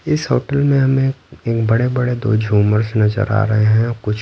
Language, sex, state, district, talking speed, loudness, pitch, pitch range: Hindi, male, Bihar, Patna, 200 wpm, -16 LUFS, 115 Hz, 110-135 Hz